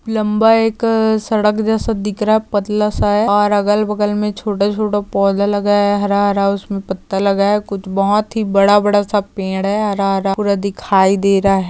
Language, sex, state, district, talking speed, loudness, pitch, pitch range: Hindi, female, Maharashtra, Chandrapur, 190 wpm, -15 LUFS, 205 Hz, 200-210 Hz